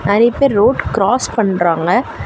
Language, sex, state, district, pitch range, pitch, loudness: Tamil, female, Tamil Nadu, Chennai, 175-235 Hz, 205 Hz, -14 LUFS